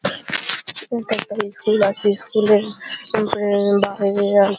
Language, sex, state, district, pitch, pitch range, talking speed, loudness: Bengali, female, West Bengal, Malda, 205 Hz, 200-215 Hz, 105 wpm, -20 LUFS